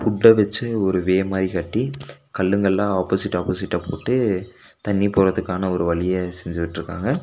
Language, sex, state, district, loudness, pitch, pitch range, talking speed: Tamil, male, Tamil Nadu, Nilgiris, -21 LUFS, 95 Hz, 90-100 Hz, 135 wpm